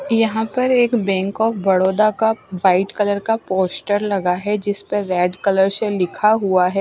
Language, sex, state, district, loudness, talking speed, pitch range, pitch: Hindi, female, Odisha, Nuapada, -18 LUFS, 185 wpm, 190-220 Hz, 205 Hz